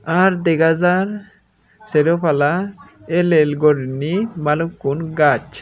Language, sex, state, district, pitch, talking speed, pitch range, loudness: Chakma, male, Tripura, Unakoti, 165 Hz, 95 wpm, 150-180 Hz, -17 LUFS